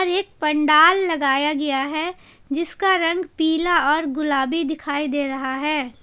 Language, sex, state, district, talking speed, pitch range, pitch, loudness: Hindi, female, Jharkhand, Palamu, 140 wpm, 285-335 Hz, 305 Hz, -19 LUFS